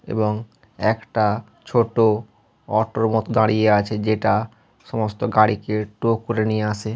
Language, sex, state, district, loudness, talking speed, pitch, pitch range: Bengali, male, West Bengal, Malda, -21 LUFS, 110 wpm, 110 Hz, 105-115 Hz